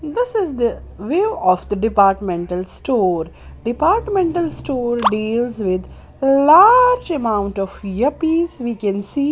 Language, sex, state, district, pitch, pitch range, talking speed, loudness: English, female, Maharashtra, Mumbai Suburban, 240 Hz, 200-325 Hz, 135 wpm, -17 LUFS